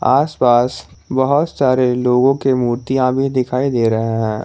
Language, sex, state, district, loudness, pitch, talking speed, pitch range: Hindi, male, Jharkhand, Garhwa, -16 LUFS, 130 Hz, 150 wpm, 120-135 Hz